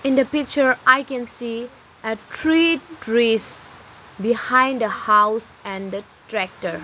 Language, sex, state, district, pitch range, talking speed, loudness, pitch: English, female, Arunachal Pradesh, Lower Dibang Valley, 220-270 Hz, 130 wpm, -20 LUFS, 240 Hz